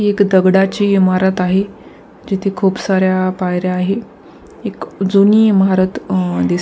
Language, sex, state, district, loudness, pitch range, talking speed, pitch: Marathi, female, Maharashtra, Pune, -14 LUFS, 185-200 Hz, 155 wpm, 190 Hz